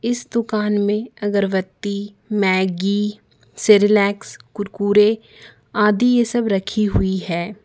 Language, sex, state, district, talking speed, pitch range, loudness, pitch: Hindi, female, Jharkhand, Ranchi, 100 wpm, 200-215 Hz, -19 LUFS, 205 Hz